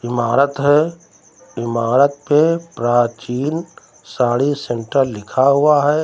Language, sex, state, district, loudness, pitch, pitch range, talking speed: Hindi, male, Uttar Pradesh, Lucknow, -17 LUFS, 140 Hz, 120-150 Hz, 100 wpm